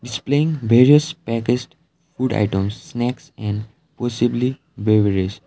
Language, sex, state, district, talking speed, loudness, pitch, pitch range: English, male, Sikkim, Gangtok, 100 wpm, -19 LUFS, 120 Hz, 110-150 Hz